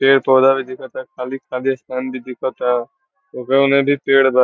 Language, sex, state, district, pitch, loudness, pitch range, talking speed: Bhojpuri, male, Bihar, Saran, 130 Hz, -17 LUFS, 130-135 Hz, 175 wpm